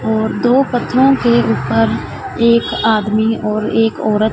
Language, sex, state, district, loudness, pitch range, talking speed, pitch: Hindi, female, Punjab, Fazilka, -14 LUFS, 210-235 Hz, 150 wpm, 220 Hz